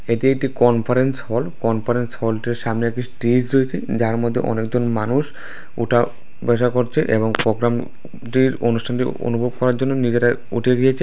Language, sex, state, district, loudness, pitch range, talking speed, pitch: Bengali, male, Tripura, West Tripura, -19 LUFS, 115-125 Hz, 150 wpm, 120 Hz